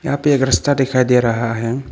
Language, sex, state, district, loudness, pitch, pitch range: Hindi, male, Arunachal Pradesh, Papum Pare, -16 LUFS, 130 Hz, 115-140 Hz